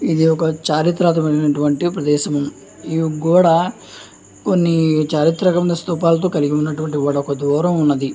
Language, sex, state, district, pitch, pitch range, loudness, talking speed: Telugu, male, Andhra Pradesh, Anantapur, 160 Hz, 150-170 Hz, -17 LUFS, 90 wpm